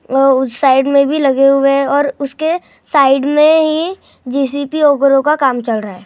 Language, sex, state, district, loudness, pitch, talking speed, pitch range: Hindi, male, Maharashtra, Gondia, -13 LUFS, 275 Hz, 180 wpm, 270-295 Hz